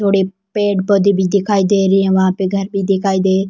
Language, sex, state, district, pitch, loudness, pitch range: Rajasthani, female, Rajasthan, Churu, 195 Hz, -15 LUFS, 190-200 Hz